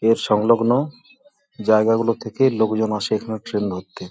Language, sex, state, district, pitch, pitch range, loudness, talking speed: Bengali, male, West Bengal, Jhargram, 110 Hz, 105-120 Hz, -20 LUFS, 160 wpm